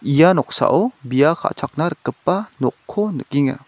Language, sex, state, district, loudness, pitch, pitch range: Garo, male, Meghalaya, West Garo Hills, -19 LUFS, 145 Hz, 140-195 Hz